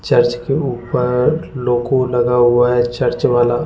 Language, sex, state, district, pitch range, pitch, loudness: Hindi, male, Goa, North and South Goa, 120-130 Hz, 125 Hz, -16 LUFS